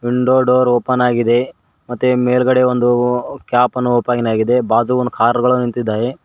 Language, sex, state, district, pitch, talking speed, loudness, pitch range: Kannada, male, Karnataka, Koppal, 125 Hz, 155 wpm, -15 LUFS, 120-125 Hz